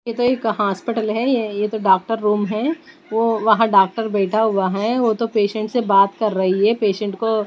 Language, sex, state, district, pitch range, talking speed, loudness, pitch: Hindi, female, Bihar, West Champaran, 205-230 Hz, 225 wpm, -18 LUFS, 215 Hz